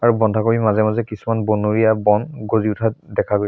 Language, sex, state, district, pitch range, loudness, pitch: Assamese, male, Assam, Sonitpur, 105-115 Hz, -18 LUFS, 110 Hz